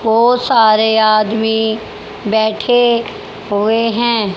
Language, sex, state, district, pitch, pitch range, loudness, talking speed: Hindi, female, Haryana, Charkhi Dadri, 220 Hz, 220-230 Hz, -13 LUFS, 80 wpm